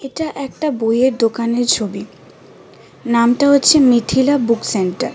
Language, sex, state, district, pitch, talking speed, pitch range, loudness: Bengali, female, Tripura, West Tripura, 245 Hz, 130 wpm, 230-275 Hz, -15 LUFS